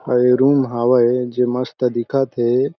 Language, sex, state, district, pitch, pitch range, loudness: Chhattisgarhi, male, Chhattisgarh, Jashpur, 125 Hz, 120-135 Hz, -17 LUFS